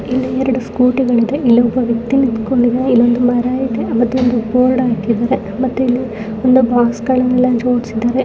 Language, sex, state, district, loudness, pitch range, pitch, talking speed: Kannada, female, Karnataka, Bellary, -14 LUFS, 235-255 Hz, 245 Hz, 155 wpm